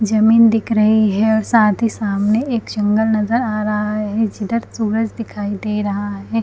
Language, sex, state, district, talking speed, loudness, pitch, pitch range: Hindi, female, Chhattisgarh, Bilaspur, 185 wpm, -17 LUFS, 215 Hz, 210-225 Hz